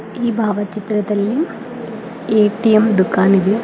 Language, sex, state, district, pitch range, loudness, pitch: Kannada, female, Karnataka, Bidar, 205-230 Hz, -16 LUFS, 215 Hz